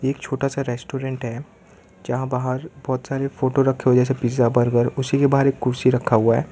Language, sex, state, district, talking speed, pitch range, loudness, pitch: Hindi, male, Gujarat, Valsad, 185 wpm, 125-135 Hz, -21 LUFS, 130 Hz